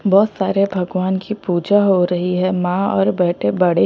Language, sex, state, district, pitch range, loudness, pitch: Hindi, female, Punjab, Pathankot, 180-195 Hz, -17 LUFS, 185 Hz